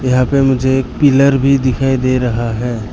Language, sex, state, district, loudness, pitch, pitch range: Hindi, male, Arunachal Pradesh, Lower Dibang Valley, -13 LUFS, 130 Hz, 125-135 Hz